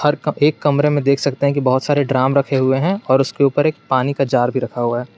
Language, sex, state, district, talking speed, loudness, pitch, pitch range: Hindi, male, Jharkhand, Garhwa, 280 wpm, -17 LUFS, 140 Hz, 130-145 Hz